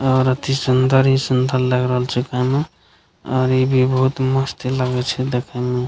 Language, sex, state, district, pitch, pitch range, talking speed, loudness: Maithili, male, Bihar, Begusarai, 130 Hz, 125-130 Hz, 195 wpm, -18 LUFS